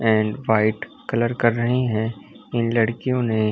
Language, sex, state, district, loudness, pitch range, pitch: Hindi, male, Chhattisgarh, Bilaspur, -22 LUFS, 110-120 Hz, 115 Hz